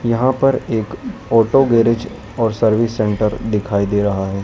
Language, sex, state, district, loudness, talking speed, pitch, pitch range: Hindi, male, Madhya Pradesh, Dhar, -16 LUFS, 160 wpm, 110 Hz, 105-115 Hz